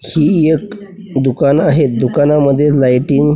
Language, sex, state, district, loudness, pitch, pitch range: Marathi, male, Maharashtra, Washim, -12 LUFS, 145 Hz, 135-160 Hz